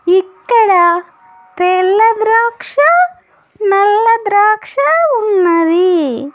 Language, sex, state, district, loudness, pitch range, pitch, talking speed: Telugu, female, Andhra Pradesh, Annamaya, -11 LUFS, 335-430 Hz, 370 Hz, 55 wpm